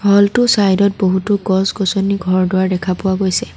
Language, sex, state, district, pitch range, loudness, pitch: Assamese, female, Assam, Sonitpur, 190-200 Hz, -15 LUFS, 195 Hz